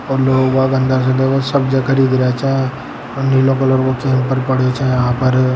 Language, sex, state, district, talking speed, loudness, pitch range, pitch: Hindi, male, Rajasthan, Nagaur, 195 wpm, -15 LUFS, 130-135 Hz, 130 Hz